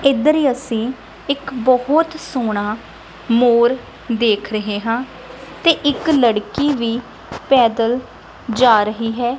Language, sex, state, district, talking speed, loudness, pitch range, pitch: Punjabi, female, Punjab, Kapurthala, 110 wpm, -17 LUFS, 230-275 Hz, 245 Hz